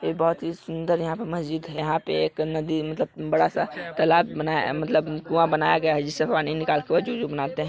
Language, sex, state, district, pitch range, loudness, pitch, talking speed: Hindi, male, Chhattisgarh, Sarguja, 155-165 Hz, -24 LUFS, 155 Hz, 225 wpm